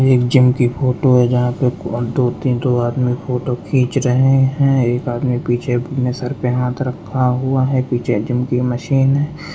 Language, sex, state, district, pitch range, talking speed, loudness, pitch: Hindi, male, Uttar Pradesh, Lucknow, 125-130 Hz, 190 wpm, -17 LUFS, 125 Hz